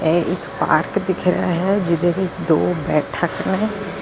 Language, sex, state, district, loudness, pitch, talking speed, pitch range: Punjabi, female, Karnataka, Bangalore, -19 LUFS, 180 Hz, 180 wpm, 170-190 Hz